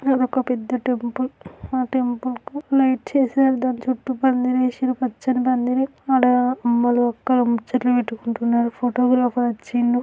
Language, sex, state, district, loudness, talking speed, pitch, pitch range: Telugu, female, Telangana, Karimnagar, -20 LUFS, 130 wpm, 250 Hz, 245-260 Hz